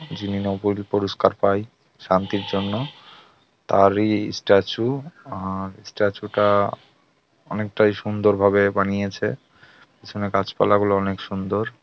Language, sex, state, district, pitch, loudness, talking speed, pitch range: Bengali, male, West Bengal, Jhargram, 100 Hz, -22 LUFS, 80 wpm, 100-105 Hz